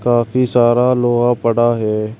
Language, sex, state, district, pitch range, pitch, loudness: Hindi, male, Uttar Pradesh, Shamli, 115-125 Hz, 120 Hz, -15 LUFS